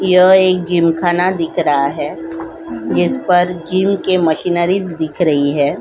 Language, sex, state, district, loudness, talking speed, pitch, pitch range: Hindi, female, Goa, North and South Goa, -14 LUFS, 155 wpm, 170 Hz, 155-185 Hz